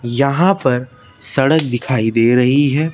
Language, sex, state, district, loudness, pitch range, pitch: Hindi, male, Madhya Pradesh, Bhopal, -15 LUFS, 120-140 Hz, 130 Hz